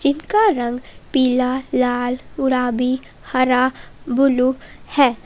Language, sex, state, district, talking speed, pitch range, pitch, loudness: Hindi, female, Jharkhand, Palamu, 90 wpm, 250-275 Hz, 255 Hz, -19 LUFS